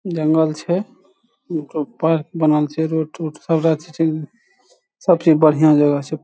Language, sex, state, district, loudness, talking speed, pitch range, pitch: Maithili, male, Bihar, Saharsa, -18 LUFS, 125 wpm, 155-175 Hz, 160 Hz